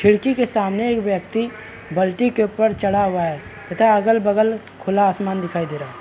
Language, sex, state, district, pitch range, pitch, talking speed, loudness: Hindi, male, Bihar, Araria, 190-220 Hz, 205 Hz, 200 wpm, -19 LUFS